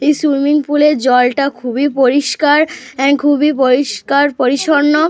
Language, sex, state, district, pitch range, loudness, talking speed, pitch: Bengali, female, Jharkhand, Jamtara, 260-295 Hz, -13 LUFS, 130 wpm, 285 Hz